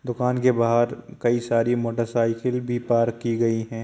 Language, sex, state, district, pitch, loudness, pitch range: Hindi, male, Uttar Pradesh, Jyotiba Phule Nagar, 120 Hz, -23 LUFS, 115-120 Hz